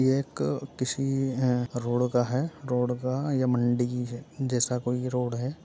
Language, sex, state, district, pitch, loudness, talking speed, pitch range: Hindi, male, Uttar Pradesh, Muzaffarnagar, 125 Hz, -28 LUFS, 170 wpm, 125-135 Hz